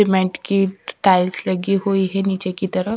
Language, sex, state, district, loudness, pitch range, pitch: Hindi, female, Punjab, Kapurthala, -19 LUFS, 185-195 Hz, 190 Hz